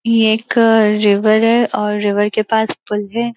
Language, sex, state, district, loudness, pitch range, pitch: Hindi, female, Uttar Pradesh, Gorakhpur, -14 LUFS, 210-230 Hz, 220 Hz